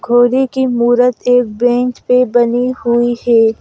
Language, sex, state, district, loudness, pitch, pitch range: Hindi, female, Madhya Pradesh, Bhopal, -13 LUFS, 245 Hz, 240-250 Hz